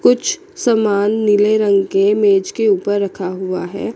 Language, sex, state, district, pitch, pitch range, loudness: Hindi, female, Chandigarh, Chandigarh, 205 Hz, 195-220 Hz, -16 LUFS